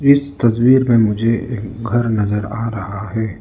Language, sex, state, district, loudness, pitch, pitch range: Hindi, male, Arunachal Pradesh, Lower Dibang Valley, -17 LUFS, 115 Hz, 105-120 Hz